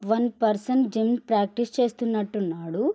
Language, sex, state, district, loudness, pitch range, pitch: Telugu, female, Andhra Pradesh, Srikakulam, -25 LUFS, 210-240 Hz, 225 Hz